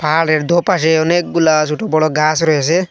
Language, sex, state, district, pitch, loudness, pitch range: Bengali, male, Assam, Hailakandi, 160 Hz, -14 LUFS, 155-170 Hz